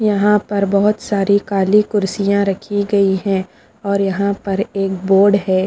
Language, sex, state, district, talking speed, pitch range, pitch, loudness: Hindi, female, Punjab, Fazilka, 160 wpm, 195-205 Hz, 200 Hz, -16 LUFS